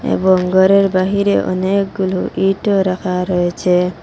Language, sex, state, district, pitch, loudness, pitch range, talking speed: Bengali, female, Assam, Hailakandi, 185 Hz, -15 LUFS, 180-195 Hz, 105 wpm